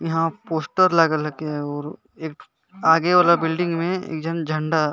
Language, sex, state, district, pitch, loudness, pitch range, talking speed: Sadri, male, Chhattisgarh, Jashpur, 165 Hz, -21 LUFS, 155-170 Hz, 180 wpm